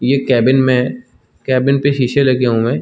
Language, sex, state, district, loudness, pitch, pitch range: Hindi, male, Chhattisgarh, Balrampur, -14 LUFS, 130 Hz, 125-135 Hz